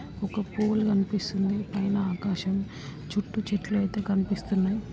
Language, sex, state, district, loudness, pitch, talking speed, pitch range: Telugu, female, Andhra Pradesh, Srikakulam, -28 LUFS, 200 Hz, 110 wpm, 195-205 Hz